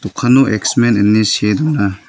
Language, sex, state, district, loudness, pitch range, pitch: Garo, male, Meghalaya, North Garo Hills, -13 LUFS, 105-130 Hz, 110 Hz